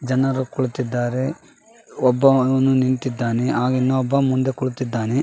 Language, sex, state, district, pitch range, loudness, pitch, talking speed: Kannada, male, Karnataka, Raichur, 125-130 Hz, -20 LUFS, 130 Hz, 90 wpm